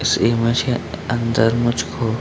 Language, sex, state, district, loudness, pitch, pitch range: Hindi, male, Jharkhand, Sahebganj, -19 LUFS, 115 Hz, 115-120 Hz